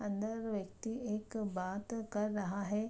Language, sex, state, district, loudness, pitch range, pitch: Hindi, female, Bihar, Araria, -39 LUFS, 200-225 Hz, 210 Hz